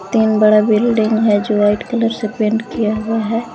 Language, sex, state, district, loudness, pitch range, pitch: Hindi, female, Jharkhand, Garhwa, -15 LUFS, 215-225 Hz, 220 Hz